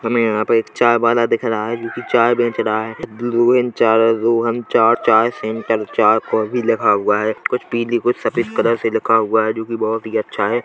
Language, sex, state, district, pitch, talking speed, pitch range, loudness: Hindi, male, Chhattisgarh, Korba, 115 Hz, 225 wpm, 110-120 Hz, -17 LUFS